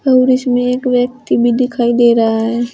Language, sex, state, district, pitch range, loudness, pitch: Hindi, female, Uttar Pradesh, Saharanpur, 240-255 Hz, -13 LUFS, 245 Hz